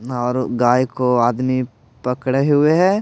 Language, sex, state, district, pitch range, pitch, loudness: Hindi, male, Bihar, Patna, 120-130 Hz, 125 Hz, -18 LUFS